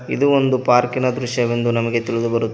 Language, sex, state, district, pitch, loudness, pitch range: Kannada, male, Karnataka, Koppal, 120 Hz, -18 LUFS, 115-125 Hz